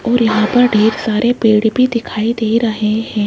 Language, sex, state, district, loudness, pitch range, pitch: Hindi, female, Rajasthan, Jaipur, -14 LUFS, 215-235 Hz, 225 Hz